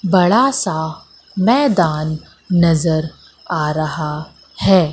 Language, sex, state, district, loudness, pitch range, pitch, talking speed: Hindi, female, Madhya Pradesh, Katni, -16 LUFS, 155-190 Hz, 165 Hz, 85 wpm